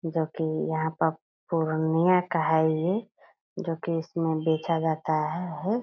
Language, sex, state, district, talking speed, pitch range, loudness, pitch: Hindi, female, Bihar, Purnia, 145 wpm, 160-170 Hz, -27 LUFS, 160 Hz